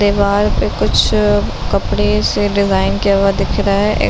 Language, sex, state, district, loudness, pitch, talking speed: Hindi, female, Bihar, Madhepura, -14 LUFS, 195 Hz, 190 wpm